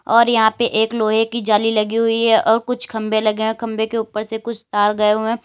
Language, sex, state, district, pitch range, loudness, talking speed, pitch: Hindi, female, Uttar Pradesh, Lalitpur, 215-230 Hz, -18 LUFS, 265 wpm, 225 Hz